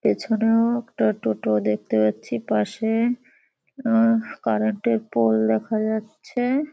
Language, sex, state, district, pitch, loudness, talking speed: Bengali, female, West Bengal, Kolkata, 215 Hz, -22 LUFS, 105 wpm